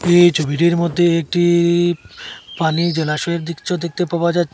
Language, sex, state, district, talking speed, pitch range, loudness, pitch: Bengali, male, Assam, Hailakandi, 130 wpm, 165-175 Hz, -17 LUFS, 170 Hz